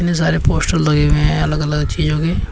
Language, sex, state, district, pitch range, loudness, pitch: Hindi, male, Uttar Pradesh, Shamli, 150-160 Hz, -16 LUFS, 150 Hz